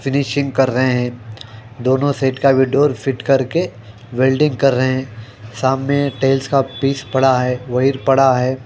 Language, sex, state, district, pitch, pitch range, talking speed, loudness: Hindi, male, Haryana, Jhajjar, 130 Hz, 125-135 Hz, 165 wpm, -16 LUFS